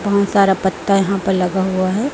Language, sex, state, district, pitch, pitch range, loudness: Hindi, female, Chhattisgarh, Raipur, 195 Hz, 190-200 Hz, -16 LUFS